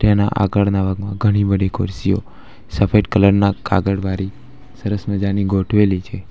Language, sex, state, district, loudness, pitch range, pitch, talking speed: Gujarati, male, Gujarat, Valsad, -18 LUFS, 95-105 Hz, 100 Hz, 140 wpm